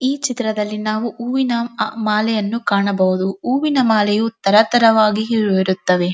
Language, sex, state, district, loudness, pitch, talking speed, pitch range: Kannada, female, Karnataka, Dharwad, -17 LUFS, 215 Hz, 90 wpm, 205-235 Hz